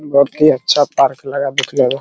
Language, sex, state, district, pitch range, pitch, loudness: Hindi, male, Bihar, Araria, 135-145 Hz, 140 Hz, -14 LUFS